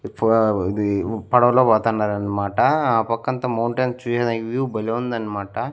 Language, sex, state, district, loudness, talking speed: Telugu, male, Andhra Pradesh, Annamaya, -20 LUFS, 125 wpm